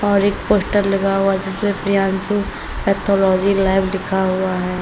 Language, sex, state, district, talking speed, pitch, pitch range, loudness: Hindi, female, Uttar Pradesh, Lalitpur, 150 wpm, 195 Hz, 190-200 Hz, -18 LUFS